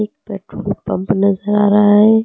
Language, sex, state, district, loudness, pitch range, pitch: Hindi, female, Uttar Pradesh, Lucknow, -14 LUFS, 200-210 Hz, 210 Hz